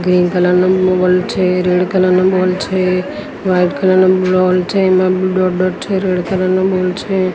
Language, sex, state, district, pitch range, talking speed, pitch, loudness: Gujarati, female, Gujarat, Gandhinagar, 180-185 Hz, 165 wpm, 185 Hz, -13 LUFS